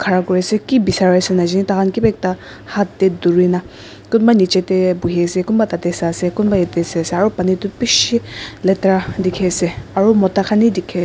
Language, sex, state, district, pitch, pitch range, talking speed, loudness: Nagamese, female, Nagaland, Dimapur, 185 Hz, 180-205 Hz, 200 wpm, -16 LUFS